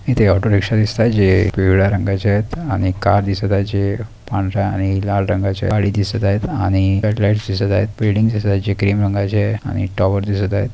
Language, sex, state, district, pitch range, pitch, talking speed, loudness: Marathi, male, Maharashtra, Pune, 100-105 Hz, 100 Hz, 190 wpm, -17 LUFS